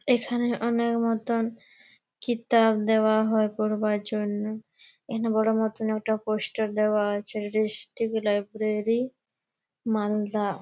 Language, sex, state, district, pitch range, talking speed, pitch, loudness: Bengali, female, West Bengal, Malda, 215-230 Hz, 85 wpm, 220 Hz, -26 LUFS